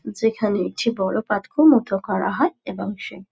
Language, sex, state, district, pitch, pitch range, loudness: Bengali, female, West Bengal, Dakshin Dinajpur, 210 Hz, 195-225 Hz, -21 LUFS